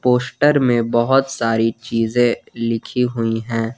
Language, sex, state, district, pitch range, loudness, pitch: Hindi, male, Jharkhand, Garhwa, 115-125 Hz, -18 LUFS, 120 Hz